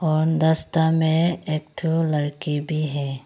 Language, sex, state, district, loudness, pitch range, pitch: Hindi, female, Arunachal Pradesh, Longding, -21 LUFS, 150-160 Hz, 155 Hz